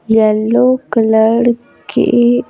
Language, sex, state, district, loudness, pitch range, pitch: Hindi, female, Bihar, Patna, -12 LUFS, 220-240 Hz, 230 Hz